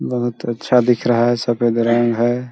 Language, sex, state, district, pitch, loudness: Hindi, male, Chhattisgarh, Balrampur, 120 Hz, -17 LUFS